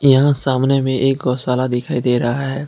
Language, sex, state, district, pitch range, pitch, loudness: Hindi, male, Jharkhand, Ranchi, 125-135 Hz, 130 Hz, -17 LUFS